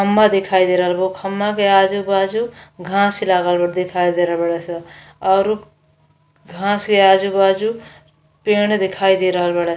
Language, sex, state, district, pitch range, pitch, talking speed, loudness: Bhojpuri, female, Uttar Pradesh, Gorakhpur, 175-200 Hz, 190 Hz, 160 wpm, -17 LUFS